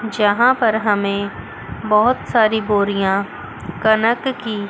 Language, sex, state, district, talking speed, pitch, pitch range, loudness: Hindi, female, Chandigarh, Chandigarh, 100 wpm, 215 Hz, 200-225 Hz, -17 LUFS